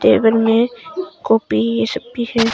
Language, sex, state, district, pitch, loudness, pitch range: Hindi, female, Arunachal Pradesh, Longding, 230 Hz, -17 LUFS, 225-240 Hz